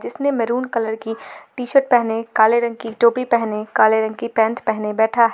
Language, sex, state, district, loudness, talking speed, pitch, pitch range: Hindi, female, Jharkhand, Garhwa, -18 LUFS, 215 wpm, 230 Hz, 220-240 Hz